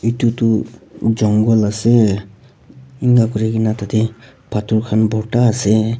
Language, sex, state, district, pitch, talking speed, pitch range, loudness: Nagamese, male, Nagaland, Kohima, 110 Hz, 90 wpm, 110-120 Hz, -16 LUFS